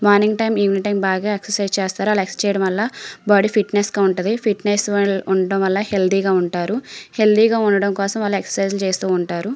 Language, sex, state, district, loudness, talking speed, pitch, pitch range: Telugu, female, Andhra Pradesh, Srikakulam, -18 LUFS, 145 wpm, 200 Hz, 195-210 Hz